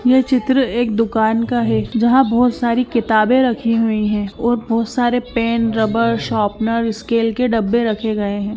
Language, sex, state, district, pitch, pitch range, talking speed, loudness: Hindi, female, Chhattisgarh, Bilaspur, 230 Hz, 220-240 Hz, 170 wpm, -17 LUFS